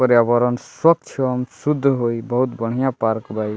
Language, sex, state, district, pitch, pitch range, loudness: Bhojpuri, male, Bihar, Muzaffarpur, 125 Hz, 115-130 Hz, -19 LUFS